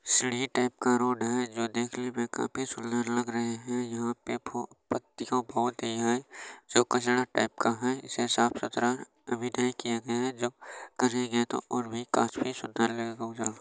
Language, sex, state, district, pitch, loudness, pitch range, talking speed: Maithili, male, Bihar, Supaul, 120 Hz, -30 LUFS, 115-125 Hz, 185 wpm